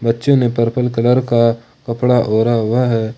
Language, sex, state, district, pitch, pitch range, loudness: Hindi, male, Jharkhand, Ranchi, 115 Hz, 115-125 Hz, -15 LUFS